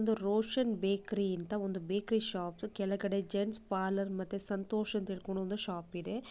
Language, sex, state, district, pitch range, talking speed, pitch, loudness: Kannada, female, Karnataka, Bijapur, 195-215 Hz, 160 wpm, 200 Hz, -35 LUFS